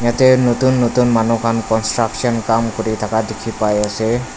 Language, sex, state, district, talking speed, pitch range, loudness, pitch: Nagamese, male, Nagaland, Dimapur, 165 wpm, 110-120 Hz, -16 LUFS, 115 Hz